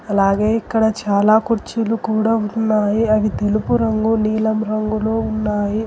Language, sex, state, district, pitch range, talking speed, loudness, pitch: Telugu, female, Telangana, Hyderabad, 210-225 Hz, 120 wpm, -18 LUFS, 215 Hz